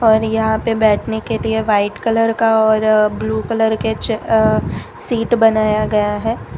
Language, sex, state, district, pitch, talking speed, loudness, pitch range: Hindi, female, Gujarat, Valsad, 220 Hz, 175 wpm, -16 LUFS, 215-225 Hz